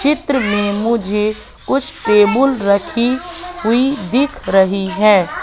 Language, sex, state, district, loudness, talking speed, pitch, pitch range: Hindi, female, Madhya Pradesh, Katni, -15 LUFS, 110 wpm, 225 Hz, 205-270 Hz